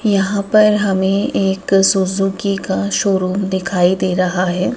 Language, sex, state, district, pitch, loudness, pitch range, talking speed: Hindi, female, Madhya Pradesh, Dhar, 195 Hz, -15 LUFS, 190-200 Hz, 140 wpm